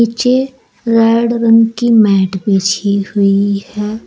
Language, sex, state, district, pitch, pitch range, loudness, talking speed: Hindi, female, Uttar Pradesh, Saharanpur, 220 Hz, 200-235 Hz, -12 LUFS, 120 wpm